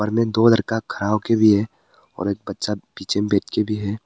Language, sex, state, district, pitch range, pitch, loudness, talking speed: Hindi, male, Arunachal Pradesh, Papum Pare, 100-110 Hz, 105 Hz, -20 LUFS, 220 wpm